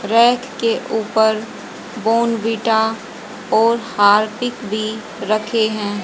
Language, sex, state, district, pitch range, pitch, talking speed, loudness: Hindi, female, Haryana, Jhajjar, 215-230 Hz, 220 Hz, 90 wpm, -17 LUFS